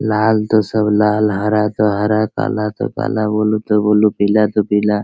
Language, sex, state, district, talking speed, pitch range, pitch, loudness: Hindi, male, Bihar, Araria, 190 wpm, 105-110 Hz, 105 Hz, -15 LUFS